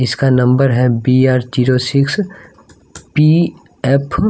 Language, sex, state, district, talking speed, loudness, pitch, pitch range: Hindi, male, Bihar, West Champaran, 110 wpm, -14 LUFS, 130 Hz, 125-145 Hz